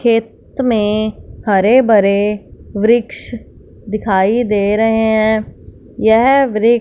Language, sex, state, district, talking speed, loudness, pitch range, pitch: Hindi, female, Punjab, Fazilka, 95 wpm, -14 LUFS, 210-230 Hz, 220 Hz